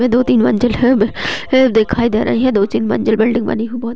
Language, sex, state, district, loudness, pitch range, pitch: Hindi, female, Chhattisgarh, Raigarh, -14 LUFS, 220-245 Hz, 235 Hz